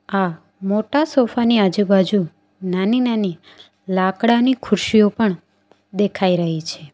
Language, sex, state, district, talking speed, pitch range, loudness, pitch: Gujarati, female, Gujarat, Valsad, 110 wpm, 180-220 Hz, -18 LUFS, 195 Hz